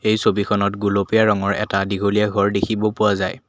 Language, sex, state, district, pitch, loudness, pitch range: Assamese, male, Assam, Kamrup Metropolitan, 100 Hz, -19 LUFS, 100-105 Hz